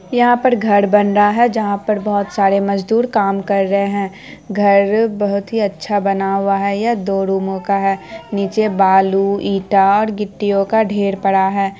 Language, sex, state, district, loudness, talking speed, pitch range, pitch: Hindi, female, Bihar, Araria, -15 LUFS, 180 wpm, 195-210 Hz, 200 Hz